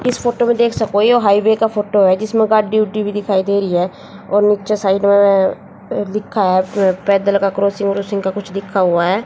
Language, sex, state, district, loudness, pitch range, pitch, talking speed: Hindi, female, Haryana, Jhajjar, -15 LUFS, 195-215 Hz, 200 Hz, 215 wpm